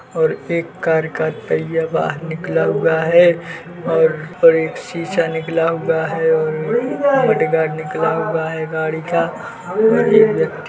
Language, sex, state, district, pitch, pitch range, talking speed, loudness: Hindi, male, Chhattisgarh, Bilaspur, 165 Hz, 160-170 Hz, 150 wpm, -17 LUFS